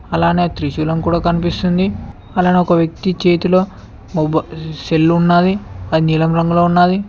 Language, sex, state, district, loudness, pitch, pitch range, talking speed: Telugu, male, Telangana, Mahabubabad, -15 LUFS, 170 Hz, 160-180 Hz, 125 wpm